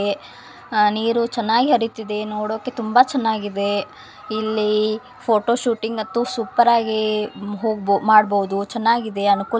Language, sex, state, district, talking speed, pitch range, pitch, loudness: Kannada, female, Karnataka, Belgaum, 95 wpm, 210-235 Hz, 220 Hz, -20 LUFS